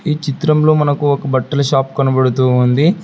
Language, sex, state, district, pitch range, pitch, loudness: Telugu, male, Telangana, Hyderabad, 130-150 Hz, 140 Hz, -14 LUFS